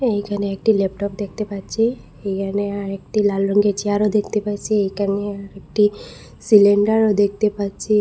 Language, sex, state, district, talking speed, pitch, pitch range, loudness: Bengali, female, Assam, Hailakandi, 125 wpm, 205 Hz, 200-210 Hz, -19 LUFS